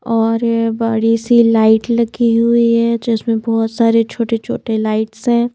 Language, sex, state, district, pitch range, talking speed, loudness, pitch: Hindi, female, Madhya Pradesh, Bhopal, 225-235 Hz, 140 wpm, -14 LUFS, 230 Hz